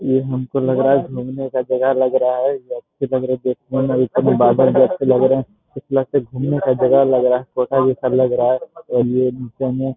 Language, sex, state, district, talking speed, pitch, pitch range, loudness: Hindi, male, Bihar, Jamui, 205 wpm, 130 Hz, 130-135 Hz, -17 LUFS